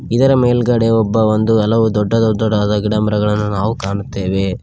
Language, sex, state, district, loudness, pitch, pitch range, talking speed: Kannada, male, Karnataka, Koppal, -15 LUFS, 110 Hz, 105-115 Hz, 130 wpm